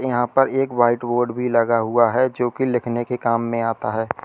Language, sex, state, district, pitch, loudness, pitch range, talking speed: Hindi, male, Uttar Pradesh, Lalitpur, 120 Hz, -20 LUFS, 115-125 Hz, 225 wpm